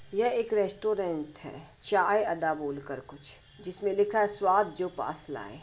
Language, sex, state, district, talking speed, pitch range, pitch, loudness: Hindi, female, Bihar, Madhepura, 160 wpm, 140-205 Hz, 170 Hz, -29 LUFS